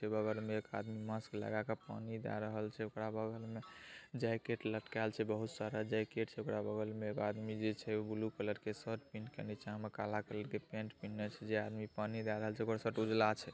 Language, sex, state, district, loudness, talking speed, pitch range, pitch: Maithili, male, Bihar, Saharsa, -42 LUFS, 210 wpm, 105-110 Hz, 110 Hz